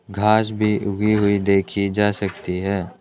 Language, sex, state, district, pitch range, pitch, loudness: Hindi, male, Arunachal Pradesh, Lower Dibang Valley, 100-105 Hz, 100 Hz, -20 LUFS